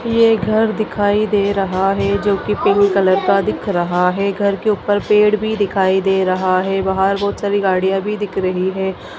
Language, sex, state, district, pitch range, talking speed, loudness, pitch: Hindi, female, Madhya Pradesh, Dhar, 190-205 Hz, 195 wpm, -16 LUFS, 200 Hz